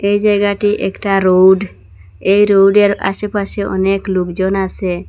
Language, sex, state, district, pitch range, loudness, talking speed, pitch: Bengali, female, Assam, Hailakandi, 185-205 Hz, -14 LUFS, 120 wpm, 195 Hz